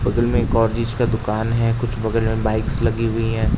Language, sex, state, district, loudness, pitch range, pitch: Hindi, male, Uttar Pradesh, Jalaun, -20 LUFS, 110-115 Hz, 115 Hz